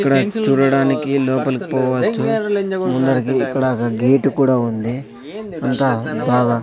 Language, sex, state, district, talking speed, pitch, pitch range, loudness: Telugu, male, Andhra Pradesh, Sri Satya Sai, 120 wpm, 135 Hz, 125-140 Hz, -17 LUFS